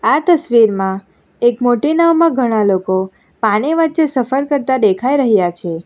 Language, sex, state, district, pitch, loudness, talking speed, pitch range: Gujarati, female, Gujarat, Valsad, 245 Hz, -14 LUFS, 145 wpm, 195-290 Hz